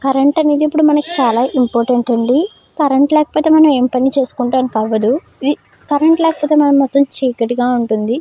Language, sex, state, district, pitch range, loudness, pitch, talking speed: Telugu, female, Andhra Pradesh, Krishna, 245-300 Hz, -14 LUFS, 270 Hz, 140 wpm